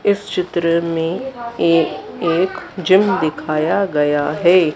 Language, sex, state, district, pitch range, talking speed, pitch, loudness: Hindi, female, Madhya Pradesh, Dhar, 160-190 Hz, 125 wpm, 170 Hz, -17 LUFS